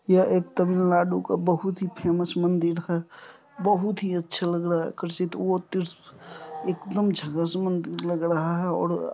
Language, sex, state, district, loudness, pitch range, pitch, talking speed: Hindi, male, Bihar, Supaul, -26 LUFS, 170-185 Hz, 175 Hz, 145 wpm